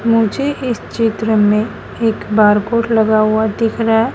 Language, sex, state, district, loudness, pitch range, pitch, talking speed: Hindi, female, Madhya Pradesh, Dhar, -15 LUFS, 215-230 Hz, 225 Hz, 85 wpm